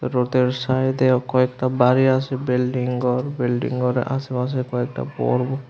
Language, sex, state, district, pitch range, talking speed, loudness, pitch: Bengali, male, Tripura, West Tripura, 125-130 Hz, 125 wpm, -21 LUFS, 125 Hz